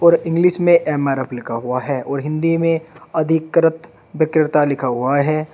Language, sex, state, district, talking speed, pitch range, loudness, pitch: Hindi, male, Uttar Pradesh, Shamli, 150 wpm, 140-165 Hz, -18 LUFS, 155 Hz